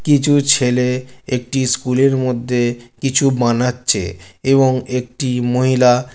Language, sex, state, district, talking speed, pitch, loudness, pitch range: Bengali, male, West Bengal, Jalpaiguri, 105 wpm, 125 Hz, -16 LUFS, 125-130 Hz